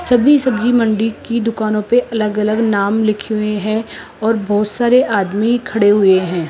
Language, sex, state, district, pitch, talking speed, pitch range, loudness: Hindi, female, Rajasthan, Jaipur, 215 Hz, 175 wpm, 210-235 Hz, -15 LUFS